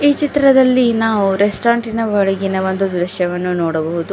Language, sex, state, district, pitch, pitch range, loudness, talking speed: Kannada, female, Karnataka, Bidar, 200 Hz, 185-235 Hz, -15 LUFS, 115 wpm